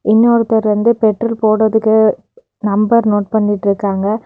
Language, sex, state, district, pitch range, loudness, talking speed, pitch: Tamil, female, Tamil Nadu, Kanyakumari, 210-230 Hz, -13 LUFS, 100 wpm, 220 Hz